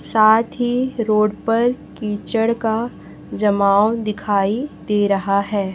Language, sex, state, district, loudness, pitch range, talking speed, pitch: Hindi, female, Chhattisgarh, Raipur, -18 LUFS, 205-230 Hz, 115 wpm, 215 Hz